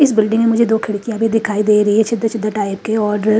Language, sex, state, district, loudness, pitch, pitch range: Hindi, female, Haryana, Rohtak, -16 LUFS, 220 Hz, 210-225 Hz